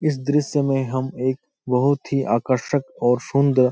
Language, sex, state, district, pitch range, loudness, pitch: Hindi, male, Uttar Pradesh, Etah, 130-140 Hz, -21 LUFS, 135 Hz